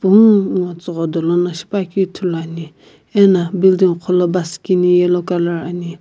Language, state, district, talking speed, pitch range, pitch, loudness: Sumi, Nagaland, Kohima, 150 wpm, 170-190 Hz, 180 Hz, -15 LUFS